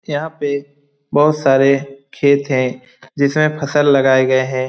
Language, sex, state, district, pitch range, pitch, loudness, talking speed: Hindi, male, Bihar, Lakhisarai, 135-145 Hz, 140 Hz, -15 LUFS, 140 wpm